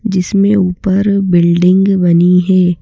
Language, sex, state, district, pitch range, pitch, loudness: Hindi, female, Madhya Pradesh, Bhopal, 180-195 Hz, 185 Hz, -11 LUFS